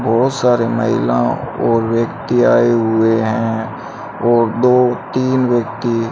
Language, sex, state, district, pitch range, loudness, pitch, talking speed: Hindi, male, Rajasthan, Bikaner, 110-120 Hz, -15 LUFS, 115 Hz, 125 wpm